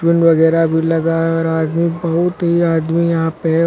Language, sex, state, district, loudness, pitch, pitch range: Hindi, male, Uttar Pradesh, Lucknow, -15 LUFS, 165 Hz, 165-170 Hz